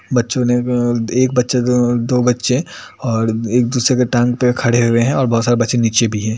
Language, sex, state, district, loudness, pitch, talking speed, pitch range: Hindi, male, Bihar, Purnia, -15 LUFS, 120 Hz, 235 wpm, 120-125 Hz